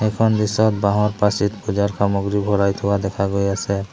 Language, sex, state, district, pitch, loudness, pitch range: Assamese, male, Assam, Sonitpur, 100 Hz, -19 LUFS, 100-105 Hz